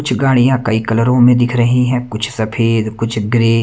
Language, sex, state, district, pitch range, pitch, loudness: Hindi, male, Haryana, Rohtak, 115-125 Hz, 120 Hz, -14 LUFS